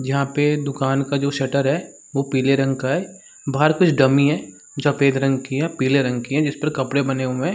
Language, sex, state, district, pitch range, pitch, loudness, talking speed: Hindi, male, Chhattisgarh, Sarguja, 135-150 Hz, 140 Hz, -20 LUFS, 240 wpm